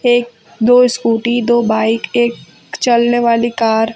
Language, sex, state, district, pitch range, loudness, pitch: Hindi, female, Uttar Pradesh, Lucknow, 225-240 Hz, -13 LUFS, 235 Hz